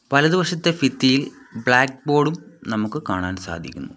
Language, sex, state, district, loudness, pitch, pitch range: Malayalam, male, Kerala, Kollam, -20 LUFS, 130 Hz, 110-150 Hz